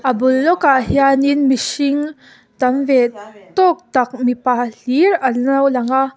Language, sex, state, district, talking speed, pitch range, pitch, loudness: Mizo, female, Mizoram, Aizawl, 155 wpm, 250-280 Hz, 265 Hz, -15 LUFS